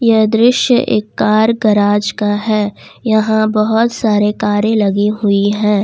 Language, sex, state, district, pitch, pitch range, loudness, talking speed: Hindi, female, Jharkhand, Ranchi, 215 Hz, 205-220 Hz, -13 LUFS, 145 wpm